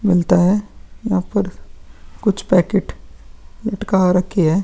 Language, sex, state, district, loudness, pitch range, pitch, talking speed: Hindi, male, Bihar, Vaishali, -18 LUFS, 175-205 Hz, 185 Hz, 115 wpm